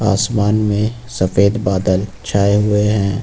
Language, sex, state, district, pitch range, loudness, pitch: Hindi, male, Uttar Pradesh, Lucknow, 100-105 Hz, -16 LUFS, 105 Hz